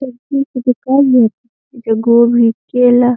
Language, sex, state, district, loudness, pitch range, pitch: Hindi, female, Uttar Pradesh, Deoria, -12 LUFS, 235-260 Hz, 245 Hz